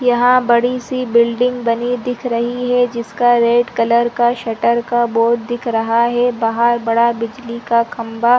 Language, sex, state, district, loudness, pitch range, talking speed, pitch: Hindi, female, Chhattisgarh, Rajnandgaon, -16 LUFS, 235-245 Hz, 165 wpm, 235 Hz